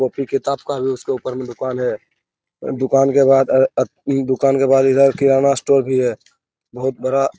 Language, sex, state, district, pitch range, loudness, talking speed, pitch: Hindi, male, Bihar, Lakhisarai, 130-135 Hz, -17 LUFS, 205 wpm, 135 Hz